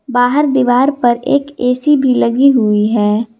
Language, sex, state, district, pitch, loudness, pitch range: Hindi, female, Jharkhand, Garhwa, 250 Hz, -12 LUFS, 235-275 Hz